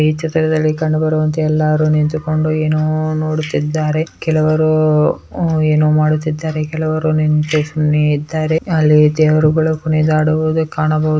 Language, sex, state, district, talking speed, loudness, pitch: Kannada, male, Karnataka, Bellary, 100 wpm, -15 LUFS, 155 Hz